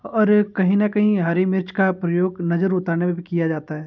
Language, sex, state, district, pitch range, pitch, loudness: Hindi, male, Bihar, Muzaffarpur, 170-195 Hz, 185 Hz, -20 LUFS